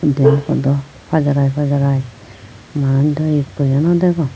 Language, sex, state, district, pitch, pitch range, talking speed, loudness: Chakma, female, Tripura, Unakoti, 140 Hz, 135-150 Hz, 110 wpm, -16 LUFS